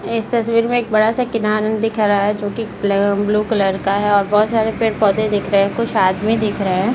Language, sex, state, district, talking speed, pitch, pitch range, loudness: Hindi, female, Bihar, Saran, 260 wpm, 215 Hz, 200-225 Hz, -17 LUFS